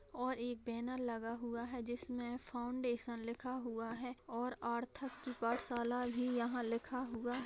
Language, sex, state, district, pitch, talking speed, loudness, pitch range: Hindi, female, Bihar, Vaishali, 245 Hz, 160 wpm, -42 LUFS, 235-250 Hz